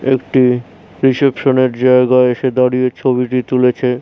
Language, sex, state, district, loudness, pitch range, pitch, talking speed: Bengali, male, West Bengal, Jhargram, -13 LUFS, 125-130 Hz, 125 Hz, 120 wpm